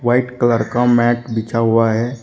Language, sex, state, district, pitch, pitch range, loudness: Hindi, male, Uttar Pradesh, Shamli, 120 Hz, 115-120 Hz, -16 LUFS